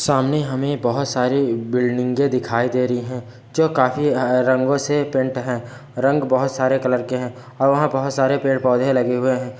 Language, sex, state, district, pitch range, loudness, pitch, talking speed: Hindi, male, Bihar, Jamui, 125-135 Hz, -19 LUFS, 130 Hz, 185 wpm